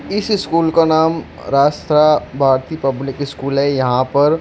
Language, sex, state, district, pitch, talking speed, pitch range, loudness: Hindi, male, Jharkhand, Jamtara, 145 Hz, 165 wpm, 135-160 Hz, -16 LUFS